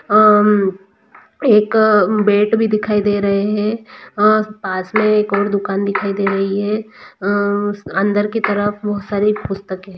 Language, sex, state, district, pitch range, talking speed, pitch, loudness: Hindi, female, Bihar, East Champaran, 200-215 Hz, 150 wpm, 205 Hz, -16 LUFS